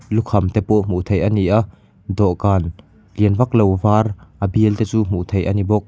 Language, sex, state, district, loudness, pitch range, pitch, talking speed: Mizo, male, Mizoram, Aizawl, -18 LUFS, 95-110 Hz, 105 Hz, 215 wpm